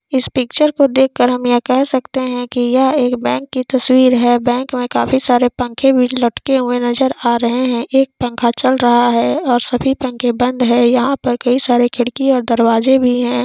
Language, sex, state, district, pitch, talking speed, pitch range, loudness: Hindi, female, Jharkhand, Sahebganj, 250 Hz, 215 wpm, 245-260 Hz, -14 LUFS